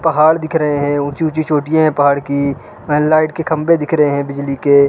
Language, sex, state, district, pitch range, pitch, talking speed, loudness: Hindi, male, Uttarakhand, Uttarkashi, 140-155 Hz, 150 Hz, 220 wpm, -15 LUFS